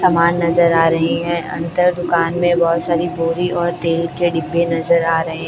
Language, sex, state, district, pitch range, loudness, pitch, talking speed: Hindi, male, Chhattisgarh, Raipur, 165-175 Hz, -16 LUFS, 170 Hz, 195 wpm